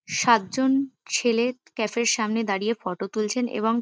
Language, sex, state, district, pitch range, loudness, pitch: Bengali, female, West Bengal, Kolkata, 210-245 Hz, -24 LUFS, 230 Hz